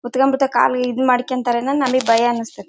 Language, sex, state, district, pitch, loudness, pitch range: Kannada, female, Karnataka, Bellary, 250 Hz, -17 LUFS, 240-260 Hz